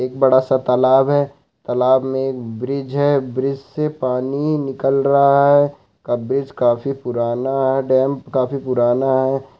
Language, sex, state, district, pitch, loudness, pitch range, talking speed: Hindi, male, Chhattisgarh, Raigarh, 135 Hz, -18 LUFS, 130-140 Hz, 155 wpm